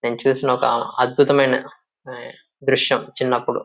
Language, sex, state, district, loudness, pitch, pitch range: Telugu, male, Telangana, Nalgonda, -19 LUFS, 135 Hz, 125-140 Hz